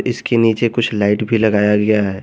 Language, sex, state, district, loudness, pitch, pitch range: Hindi, male, Jharkhand, Garhwa, -15 LUFS, 110 Hz, 105-115 Hz